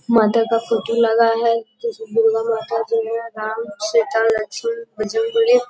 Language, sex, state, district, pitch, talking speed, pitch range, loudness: Hindi, female, Uttar Pradesh, Gorakhpur, 230 Hz, 115 wpm, 225-235 Hz, -19 LUFS